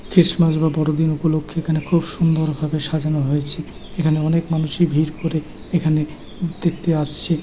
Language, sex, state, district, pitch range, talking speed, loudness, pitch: Bengali, male, West Bengal, Paschim Medinipur, 155-165 Hz, 160 wpm, -20 LUFS, 160 Hz